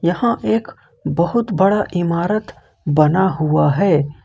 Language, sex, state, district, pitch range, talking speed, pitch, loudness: Hindi, male, Jharkhand, Ranchi, 155-205 Hz, 115 wpm, 175 Hz, -17 LUFS